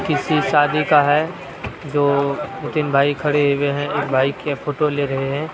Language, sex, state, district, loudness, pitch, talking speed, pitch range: Maithili, male, Bihar, Araria, -19 LUFS, 145 Hz, 185 wpm, 140-150 Hz